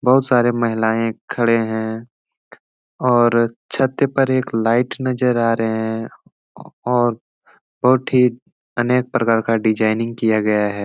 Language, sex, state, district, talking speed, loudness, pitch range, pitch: Hindi, male, Uttar Pradesh, Etah, 135 wpm, -18 LUFS, 110-125 Hz, 115 Hz